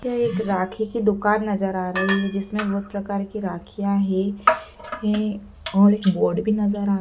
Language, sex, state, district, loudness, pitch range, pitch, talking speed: Hindi, female, Madhya Pradesh, Dhar, -22 LUFS, 195-215 Hz, 205 Hz, 190 wpm